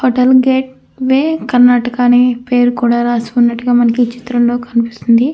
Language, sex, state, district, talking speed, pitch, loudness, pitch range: Telugu, female, Andhra Pradesh, Anantapur, 110 wpm, 245 Hz, -12 LUFS, 240-250 Hz